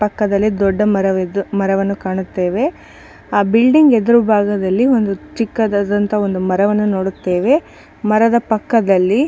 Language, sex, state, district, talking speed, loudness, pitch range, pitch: Kannada, female, Karnataka, Bijapur, 105 wpm, -15 LUFS, 195-225 Hz, 205 Hz